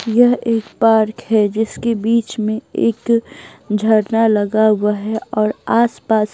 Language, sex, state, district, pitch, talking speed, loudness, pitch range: Hindi, female, Bihar, Patna, 220 Hz, 140 wpm, -16 LUFS, 215-230 Hz